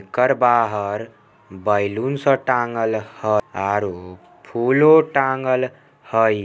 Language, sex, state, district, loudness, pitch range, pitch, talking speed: Maithili, male, Bihar, Samastipur, -19 LUFS, 105-130 Hz, 115 Hz, 95 wpm